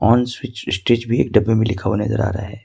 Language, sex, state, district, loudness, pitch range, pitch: Hindi, male, Jharkhand, Ranchi, -19 LUFS, 105-120 Hz, 110 Hz